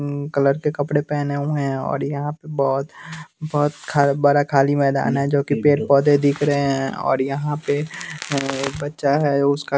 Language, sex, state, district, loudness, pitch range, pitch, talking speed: Hindi, male, Bihar, West Champaran, -20 LUFS, 140-145 Hz, 145 Hz, 185 wpm